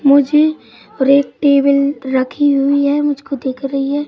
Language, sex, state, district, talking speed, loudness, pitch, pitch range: Hindi, male, Madhya Pradesh, Katni, 145 wpm, -14 LUFS, 280 Hz, 275-285 Hz